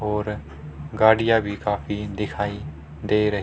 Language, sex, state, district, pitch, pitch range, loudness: Hindi, male, Haryana, Rohtak, 105 Hz, 80-105 Hz, -23 LUFS